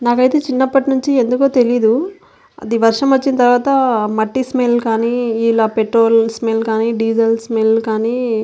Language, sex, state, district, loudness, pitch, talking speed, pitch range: Telugu, female, Andhra Pradesh, Anantapur, -14 LUFS, 235 Hz, 130 wpm, 225-260 Hz